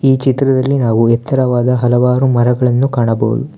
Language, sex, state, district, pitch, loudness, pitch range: Kannada, male, Karnataka, Bangalore, 125 Hz, -13 LUFS, 120-135 Hz